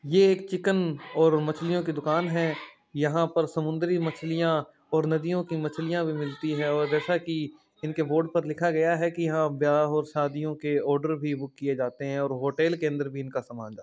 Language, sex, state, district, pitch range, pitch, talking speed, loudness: Hindi, male, Rajasthan, Churu, 150-165 Hz, 155 Hz, 215 wpm, -27 LUFS